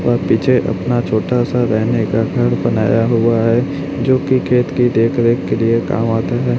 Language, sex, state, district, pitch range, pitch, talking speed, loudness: Hindi, male, Chhattisgarh, Raipur, 115-125 Hz, 120 Hz, 190 wpm, -15 LUFS